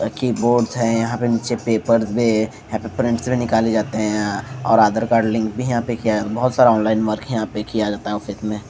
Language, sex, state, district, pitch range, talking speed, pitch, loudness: Hindi, male, Odisha, Malkangiri, 110-120 Hz, 235 wpm, 115 Hz, -19 LUFS